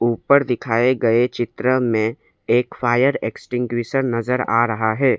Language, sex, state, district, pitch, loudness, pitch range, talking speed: Hindi, male, Assam, Kamrup Metropolitan, 120 Hz, -19 LUFS, 115-130 Hz, 125 wpm